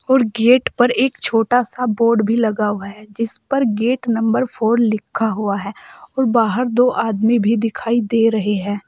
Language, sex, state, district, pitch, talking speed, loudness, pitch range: Hindi, female, Uttar Pradesh, Saharanpur, 230 Hz, 190 wpm, -17 LUFS, 215-245 Hz